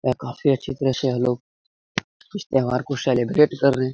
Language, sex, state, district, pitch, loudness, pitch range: Hindi, male, Bihar, Jahanabad, 130 Hz, -22 LUFS, 125-140 Hz